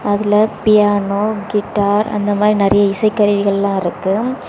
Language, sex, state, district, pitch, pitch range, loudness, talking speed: Tamil, female, Tamil Nadu, Kanyakumari, 205 Hz, 200-210 Hz, -15 LUFS, 120 wpm